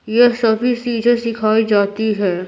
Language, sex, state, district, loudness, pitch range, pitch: Hindi, female, Bihar, Patna, -16 LUFS, 215-240 Hz, 220 Hz